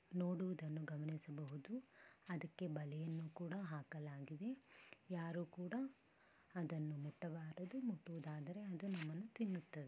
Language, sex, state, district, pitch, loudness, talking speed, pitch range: Kannada, female, Karnataka, Bellary, 170 Hz, -49 LUFS, 90 wpm, 155-190 Hz